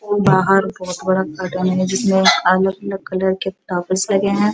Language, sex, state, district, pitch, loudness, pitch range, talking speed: Hindi, female, Uttar Pradesh, Muzaffarnagar, 190 Hz, -17 LUFS, 185-195 Hz, 145 wpm